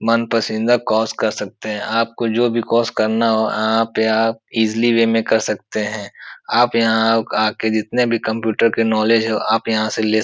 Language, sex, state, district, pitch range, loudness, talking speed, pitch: Hindi, male, Uttar Pradesh, Etah, 110-115 Hz, -17 LUFS, 205 wpm, 110 Hz